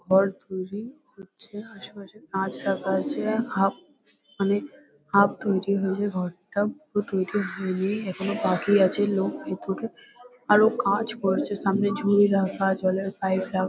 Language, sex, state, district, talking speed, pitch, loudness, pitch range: Bengali, female, West Bengal, Kolkata, 130 wpm, 200 Hz, -25 LUFS, 190-210 Hz